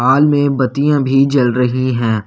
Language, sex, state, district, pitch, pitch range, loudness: Hindi, male, Delhi, New Delhi, 130 Hz, 125-140 Hz, -14 LUFS